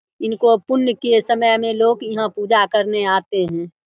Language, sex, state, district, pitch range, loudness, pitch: Hindi, male, Bihar, Begusarai, 205-230 Hz, -17 LUFS, 225 Hz